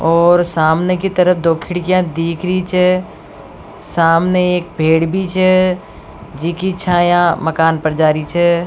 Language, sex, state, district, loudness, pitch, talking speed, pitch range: Rajasthani, female, Rajasthan, Nagaur, -14 LUFS, 175 Hz, 145 wpm, 165-180 Hz